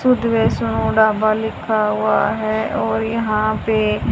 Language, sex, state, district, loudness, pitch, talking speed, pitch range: Hindi, female, Haryana, Rohtak, -18 LUFS, 215 Hz, 130 wpm, 215-220 Hz